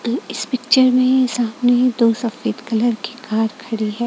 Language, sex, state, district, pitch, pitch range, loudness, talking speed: Hindi, female, Chhattisgarh, Raipur, 240 Hz, 225-255 Hz, -18 LUFS, 175 wpm